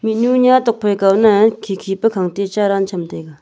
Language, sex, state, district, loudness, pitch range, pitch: Wancho, female, Arunachal Pradesh, Longding, -15 LUFS, 195-225 Hz, 205 Hz